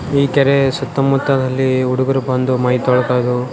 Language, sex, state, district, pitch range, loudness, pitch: Kannada, male, Karnataka, Raichur, 125-135 Hz, -15 LUFS, 130 Hz